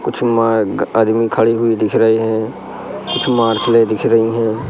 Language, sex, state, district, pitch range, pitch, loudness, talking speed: Hindi, male, Madhya Pradesh, Katni, 110-115 Hz, 115 Hz, -15 LUFS, 155 wpm